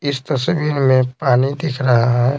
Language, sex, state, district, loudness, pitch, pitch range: Hindi, male, Bihar, Patna, -17 LUFS, 135 Hz, 125-140 Hz